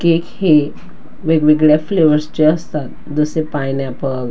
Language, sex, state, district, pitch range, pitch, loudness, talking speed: Marathi, female, Maharashtra, Dhule, 145-160 Hz, 150 Hz, -15 LUFS, 110 wpm